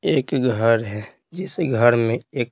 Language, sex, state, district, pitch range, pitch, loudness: Hindi, male, Bihar, Patna, 115-130 Hz, 120 Hz, -20 LUFS